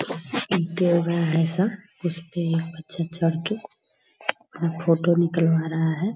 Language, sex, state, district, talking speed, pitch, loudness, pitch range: Hindi, female, Bihar, Purnia, 90 wpm, 170 Hz, -24 LUFS, 165-180 Hz